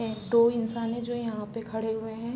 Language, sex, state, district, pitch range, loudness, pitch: Hindi, female, Bihar, Sitamarhi, 220-235 Hz, -29 LUFS, 230 Hz